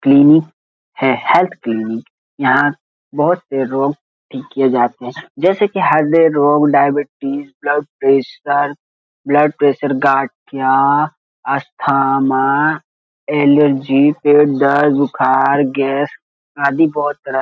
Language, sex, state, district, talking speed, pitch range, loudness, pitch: Hindi, male, Bihar, Jahanabad, 110 wpm, 135-150 Hz, -14 LUFS, 140 Hz